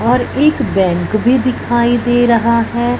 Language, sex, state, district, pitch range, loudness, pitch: Hindi, female, Punjab, Fazilka, 230-250 Hz, -13 LUFS, 240 Hz